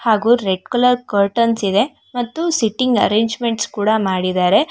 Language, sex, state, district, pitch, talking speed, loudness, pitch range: Kannada, female, Karnataka, Bangalore, 230 Hz, 125 wpm, -17 LUFS, 205-245 Hz